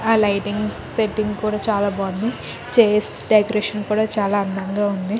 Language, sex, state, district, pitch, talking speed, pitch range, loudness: Telugu, female, Andhra Pradesh, Krishna, 210 Hz, 140 wpm, 205-215 Hz, -20 LUFS